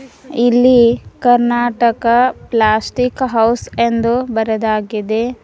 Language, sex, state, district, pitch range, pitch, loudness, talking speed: Kannada, female, Karnataka, Bidar, 225-245 Hz, 235 Hz, -14 LUFS, 65 wpm